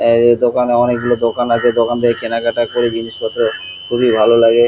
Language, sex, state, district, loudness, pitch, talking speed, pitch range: Bengali, male, West Bengal, Kolkata, -14 LUFS, 120 Hz, 190 wpm, 115-120 Hz